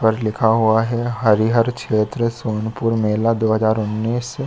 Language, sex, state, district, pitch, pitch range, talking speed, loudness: Hindi, male, Jharkhand, Sahebganj, 110 Hz, 110-115 Hz, 135 wpm, -18 LUFS